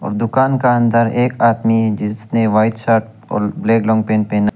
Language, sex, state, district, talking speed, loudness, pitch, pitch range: Hindi, male, Arunachal Pradesh, Lower Dibang Valley, 185 wpm, -15 LUFS, 110 Hz, 110-115 Hz